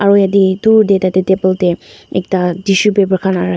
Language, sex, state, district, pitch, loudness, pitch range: Nagamese, female, Nagaland, Dimapur, 190 Hz, -13 LUFS, 185-200 Hz